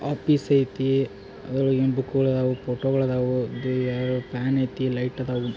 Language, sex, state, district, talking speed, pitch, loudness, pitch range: Kannada, male, Karnataka, Belgaum, 120 wpm, 130 Hz, -24 LUFS, 125-135 Hz